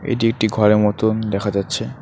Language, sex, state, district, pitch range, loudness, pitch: Bengali, male, West Bengal, Alipurduar, 105-110 Hz, -18 LUFS, 110 Hz